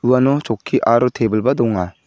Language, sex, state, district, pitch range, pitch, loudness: Garo, male, Meghalaya, South Garo Hills, 110-130 Hz, 115 Hz, -17 LUFS